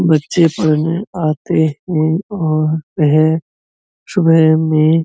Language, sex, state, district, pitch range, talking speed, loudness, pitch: Hindi, male, Uttar Pradesh, Muzaffarnagar, 155-165 Hz, 105 wpm, -14 LUFS, 160 Hz